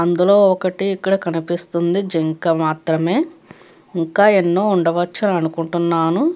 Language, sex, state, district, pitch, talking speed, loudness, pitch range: Telugu, female, Andhra Pradesh, Chittoor, 175 Hz, 105 wpm, -17 LUFS, 165-195 Hz